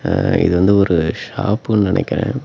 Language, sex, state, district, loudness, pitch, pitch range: Tamil, male, Tamil Nadu, Namakkal, -16 LUFS, 100 Hz, 85-110 Hz